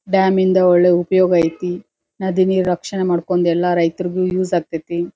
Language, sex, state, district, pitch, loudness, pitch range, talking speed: Kannada, female, Karnataka, Dharwad, 180 Hz, -17 LUFS, 175-185 Hz, 150 wpm